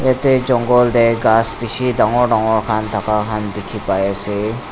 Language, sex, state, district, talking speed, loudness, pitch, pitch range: Nagamese, male, Nagaland, Dimapur, 165 wpm, -15 LUFS, 115 Hz, 105-125 Hz